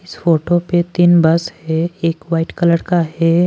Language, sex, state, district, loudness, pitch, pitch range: Hindi, female, Maharashtra, Washim, -15 LUFS, 170 Hz, 165-175 Hz